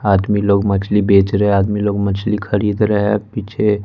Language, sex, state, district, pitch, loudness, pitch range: Hindi, male, Bihar, West Champaran, 105 Hz, -16 LUFS, 100-105 Hz